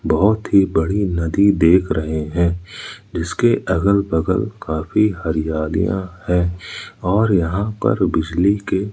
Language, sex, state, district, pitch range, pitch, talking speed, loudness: Hindi, male, Madhya Pradesh, Umaria, 80-100 Hz, 90 Hz, 120 wpm, -18 LUFS